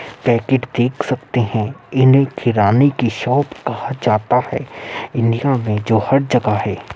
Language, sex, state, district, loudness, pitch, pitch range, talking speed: Hindi, male, Uttar Pradesh, Muzaffarnagar, -17 LUFS, 120 Hz, 110-135 Hz, 145 wpm